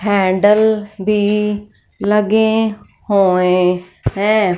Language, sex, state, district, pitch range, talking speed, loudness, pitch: Hindi, female, Punjab, Fazilka, 190-210 Hz, 65 wpm, -15 LUFS, 210 Hz